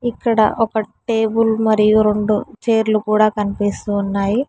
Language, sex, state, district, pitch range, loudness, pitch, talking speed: Telugu, female, Telangana, Hyderabad, 210-225 Hz, -17 LUFS, 215 Hz, 120 wpm